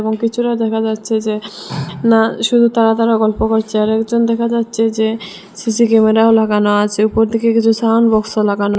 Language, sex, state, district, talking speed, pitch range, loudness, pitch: Bengali, female, Assam, Hailakandi, 170 wpm, 215-230 Hz, -14 LUFS, 225 Hz